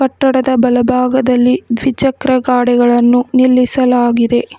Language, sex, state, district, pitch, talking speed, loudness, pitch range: Kannada, female, Karnataka, Bangalore, 250 Hz, 65 wpm, -12 LUFS, 245-260 Hz